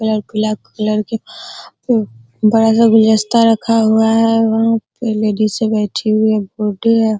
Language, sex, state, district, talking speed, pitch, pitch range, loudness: Hindi, female, Bihar, Araria, 140 wpm, 220 Hz, 215-225 Hz, -14 LUFS